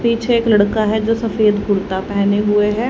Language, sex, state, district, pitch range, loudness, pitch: Hindi, female, Haryana, Charkhi Dadri, 205-225 Hz, -16 LUFS, 215 Hz